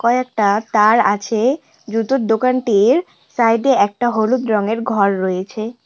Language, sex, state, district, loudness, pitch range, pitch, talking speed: Bengali, female, West Bengal, Cooch Behar, -16 LUFS, 210-250 Hz, 225 Hz, 125 wpm